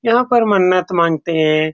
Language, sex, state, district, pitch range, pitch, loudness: Hindi, male, Bihar, Saran, 160-225 Hz, 180 Hz, -15 LUFS